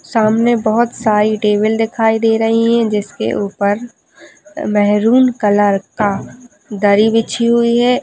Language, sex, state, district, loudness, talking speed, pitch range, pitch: Hindi, female, Chhattisgarh, Balrampur, -14 LUFS, 125 wpm, 210-235 Hz, 225 Hz